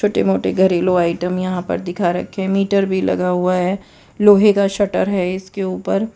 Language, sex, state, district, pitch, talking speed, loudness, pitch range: Hindi, female, Gujarat, Valsad, 190 Hz, 185 wpm, -17 LUFS, 180-200 Hz